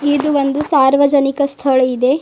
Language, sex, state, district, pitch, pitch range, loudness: Kannada, female, Karnataka, Bidar, 280 Hz, 270-290 Hz, -14 LUFS